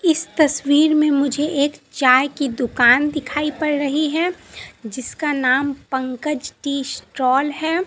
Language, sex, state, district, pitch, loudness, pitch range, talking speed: Hindi, female, Bihar, Katihar, 285 Hz, -19 LUFS, 265-300 Hz, 135 wpm